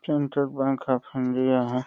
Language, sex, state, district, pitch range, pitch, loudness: Hindi, male, Uttar Pradesh, Deoria, 130-140 Hz, 130 Hz, -25 LUFS